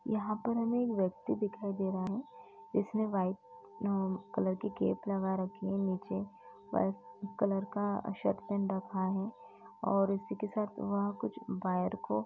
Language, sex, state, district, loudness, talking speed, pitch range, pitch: Hindi, female, Uttar Pradesh, Etah, -35 LUFS, 165 wpm, 185-210 Hz, 195 Hz